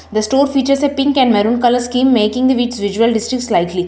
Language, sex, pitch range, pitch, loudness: English, female, 215-260 Hz, 245 Hz, -14 LUFS